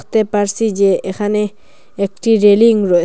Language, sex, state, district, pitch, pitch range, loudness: Bengali, female, Assam, Hailakandi, 205 Hz, 195-220 Hz, -14 LUFS